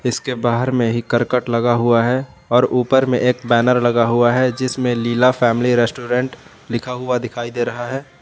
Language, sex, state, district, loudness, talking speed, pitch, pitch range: Hindi, male, Jharkhand, Palamu, -17 LUFS, 190 wpm, 120 Hz, 120-125 Hz